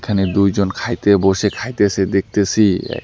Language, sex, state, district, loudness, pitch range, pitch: Bengali, male, West Bengal, Alipurduar, -16 LUFS, 95-105 Hz, 100 Hz